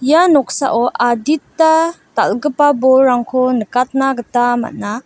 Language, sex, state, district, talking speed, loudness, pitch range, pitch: Garo, female, Meghalaya, West Garo Hills, 95 wpm, -14 LUFS, 245-295 Hz, 260 Hz